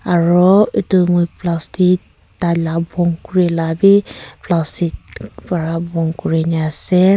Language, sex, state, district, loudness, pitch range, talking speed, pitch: Nagamese, female, Nagaland, Kohima, -16 LUFS, 165-180 Hz, 135 wpm, 170 Hz